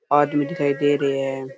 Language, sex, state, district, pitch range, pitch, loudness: Rajasthani, male, Rajasthan, Churu, 135-145 Hz, 145 Hz, -21 LUFS